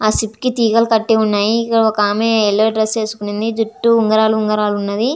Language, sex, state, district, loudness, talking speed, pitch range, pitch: Telugu, female, Andhra Pradesh, Visakhapatnam, -15 LUFS, 195 wpm, 215-225 Hz, 220 Hz